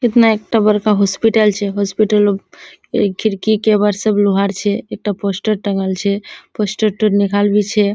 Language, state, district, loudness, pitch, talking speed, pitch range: Surjapuri, Bihar, Kishanganj, -15 LUFS, 205 Hz, 160 wpm, 200-215 Hz